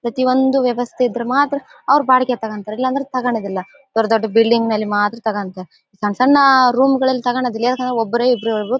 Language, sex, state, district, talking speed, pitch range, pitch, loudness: Kannada, female, Karnataka, Bellary, 170 wpm, 225-260 Hz, 245 Hz, -17 LUFS